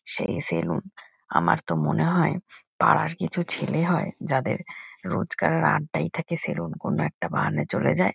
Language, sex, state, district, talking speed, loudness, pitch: Bengali, female, West Bengal, Kolkata, 145 wpm, -24 LUFS, 165 Hz